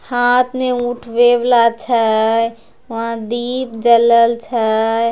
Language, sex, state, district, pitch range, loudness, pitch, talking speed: Angika, female, Bihar, Begusarai, 230-245 Hz, -15 LUFS, 235 Hz, 105 wpm